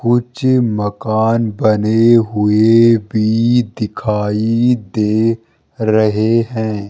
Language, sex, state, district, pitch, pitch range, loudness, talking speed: Hindi, male, Rajasthan, Jaipur, 110 Hz, 110-115 Hz, -14 LUFS, 80 wpm